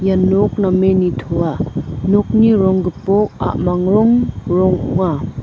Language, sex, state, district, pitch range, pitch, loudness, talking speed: Garo, female, Meghalaya, North Garo Hills, 180-200 Hz, 190 Hz, -15 LUFS, 110 wpm